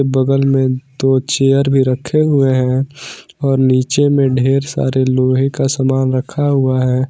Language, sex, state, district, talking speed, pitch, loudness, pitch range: Hindi, male, Jharkhand, Garhwa, 160 wpm, 135 Hz, -14 LUFS, 130-135 Hz